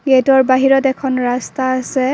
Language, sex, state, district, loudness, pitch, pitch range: Assamese, female, Assam, Kamrup Metropolitan, -14 LUFS, 260 Hz, 255-270 Hz